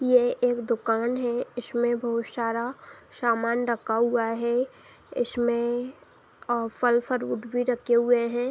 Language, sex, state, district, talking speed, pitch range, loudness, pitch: Hindi, female, Bihar, Saharsa, 120 wpm, 235-245 Hz, -26 LUFS, 240 Hz